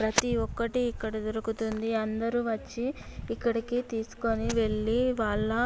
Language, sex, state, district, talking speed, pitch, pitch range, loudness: Telugu, female, Andhra Pradesh, Chittoor, 115 wpm, 225 Hz, 220-240 Hz, -30 LUFS